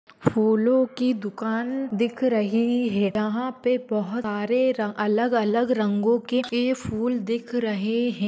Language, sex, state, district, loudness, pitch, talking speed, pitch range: Hindi, female, Maharashtra, Pune, -24 LUFS, 235 Hz, 130 wpm, 215-245 Hz